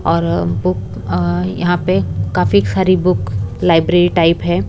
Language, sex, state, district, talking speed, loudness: Hindi, female, Bihar, West Champaran, 140 wpm, -15 LUFS